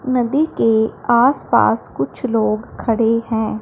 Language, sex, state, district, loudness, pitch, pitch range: Hindi, female, Punjab, Fazilka, -17 LUFS, 225 Hz, 220-245 Hz